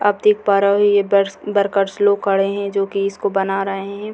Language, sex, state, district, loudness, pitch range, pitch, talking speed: Hindi, female, Bihar, Purnia, -17 LUFS, 195-205 Hz, 200 Hz, 230 wpm